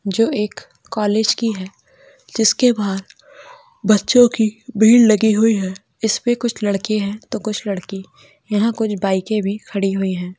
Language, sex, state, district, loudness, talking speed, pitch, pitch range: Hindi, male, Rajasthan, Churu, -18 LUFS, 150 wpm, 215 Hz, 195-225 Hz